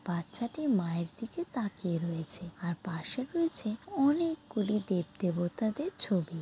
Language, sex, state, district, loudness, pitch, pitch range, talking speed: Bengali, female, West Bengal, Jalpaiguri, -33 LUFS, 205 Hz, 170-255 Hz, 110 wpm